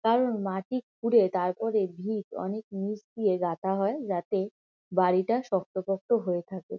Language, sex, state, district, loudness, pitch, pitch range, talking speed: Bengali, female, West Bengal, Kolkata, -29 LUFS, 195 Hz, 185-225 Hz, 140 wpm